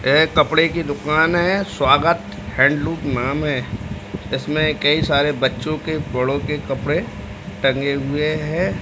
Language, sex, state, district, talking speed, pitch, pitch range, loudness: Hindi, male, Uttar Pradesh, Deoria, 135 wpm, 150 Hz, 135-155 Hz, -19 LUFS